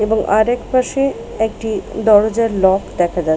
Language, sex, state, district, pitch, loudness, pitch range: Bengali, female, West Bengal, Paschim Medinipur, 220 Hz, -16 LUFS, 195-230 Hz